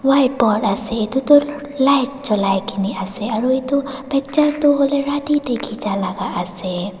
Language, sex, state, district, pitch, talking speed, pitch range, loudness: Nagamese, female, Nagaland, Dimapur, 255 Hz, 145 wpm, 200-280 Hz, -18 LUFS